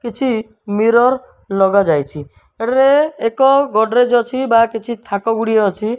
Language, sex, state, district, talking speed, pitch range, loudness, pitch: Odia, male, Odisha, Malkangiri, 130 wpm, 215-250 Hz, -15 LUFS, 230 Hz